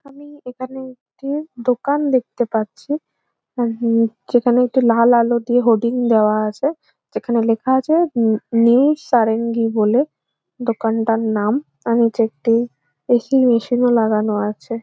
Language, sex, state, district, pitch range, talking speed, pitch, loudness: Bengali, female, West Bengal, Jhargram, 225-260 Hz, 130 wpm, 235 Hz, -17 LUFS